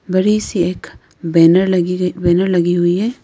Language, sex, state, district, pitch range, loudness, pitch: Hindi, female, Arunachal Pradesh, Lower Dibang Valley, 175-190 Hz, -15 LUFS, 180 Hz